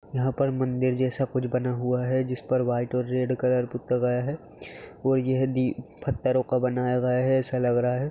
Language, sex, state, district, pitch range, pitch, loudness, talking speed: Hindi, male, Bihar, Saharsa, 125-130 Hz, 125 Hz, -26 LUFS, 215 wpm